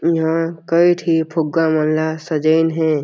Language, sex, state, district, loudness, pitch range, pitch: Chhattisgarhi, male, Chhattisgarh, Jashpur, -17 LUFS, 155-165 Hz, 160 Hz